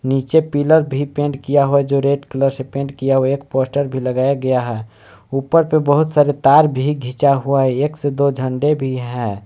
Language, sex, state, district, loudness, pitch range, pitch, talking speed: Hindi, male, Jharkhand, Palamu, -16 LUFS, 130-145 Hz, 140 Hz, 220 wpm